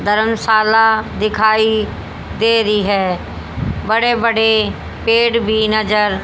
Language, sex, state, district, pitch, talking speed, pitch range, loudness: Hindi, female, Haryana, Jhajjar, 220 Hz, 95 wpm, 210-225 Hz, -15 LUFS